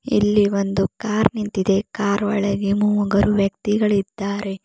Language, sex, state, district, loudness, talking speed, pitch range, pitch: Kannada, female, Karnataka, Bidar, -20 LUFS, 105 wpm, 200-210 Hz, 205 Hz